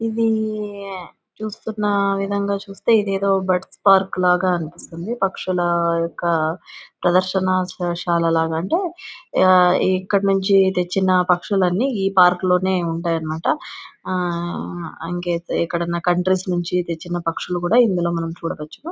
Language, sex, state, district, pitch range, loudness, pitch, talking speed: Telugu, female, Andhra Pradesh, Anantapur, 170-195 Hz, -20 LUFS, 185 Hz, 120 wpm